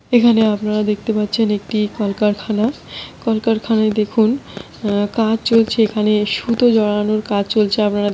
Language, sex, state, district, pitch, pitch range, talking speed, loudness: Bengali, female, West Bengal, Malda, 215 Hz, 210-225 Hz, 140 wpm, -17 LUFS